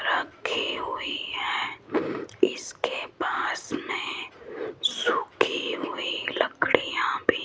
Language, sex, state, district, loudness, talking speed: Hindi, female, Rajasthan, Jaipur, -28 LUFS, 90 wpm